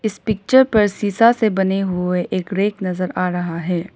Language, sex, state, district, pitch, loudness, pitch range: Hindi, female, Arunachal Pradesh, Lower Dibang Valley, 195 Hz, -18 LUFS, 180-215 Hz